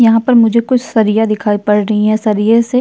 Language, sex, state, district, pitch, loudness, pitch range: Hindi, female, Uttar Pradesh, Jyotiba Phule Nagar, 220 Hz, -12 LUFS, 215-230 Hz